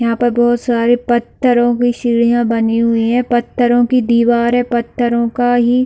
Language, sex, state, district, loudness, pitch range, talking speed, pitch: Hindi, female, Jharkhand, Sahebganj, -14 LUFS, 235-245 Hz, 195 wpm, 240 Hz